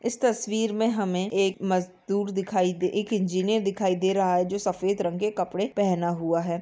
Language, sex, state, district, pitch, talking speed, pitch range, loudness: Hindi, male, Bihar, Samastipur, 195 Hz, 200 wpm, 180-205 Hz, -26 LUFS